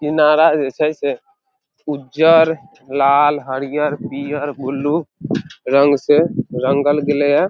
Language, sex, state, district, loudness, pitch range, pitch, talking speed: Maithili, male, Bihar, Samastipur, -16 LUFS, 140-155 Hz, 145 Hz, 110 wpm